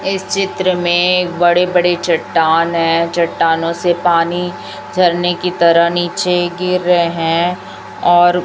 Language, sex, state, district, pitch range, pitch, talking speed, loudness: Hindi, female, Chhattisgarh, Raipur, 170-180 Hz, 175 Hz, 135 wpm, -14 LUFS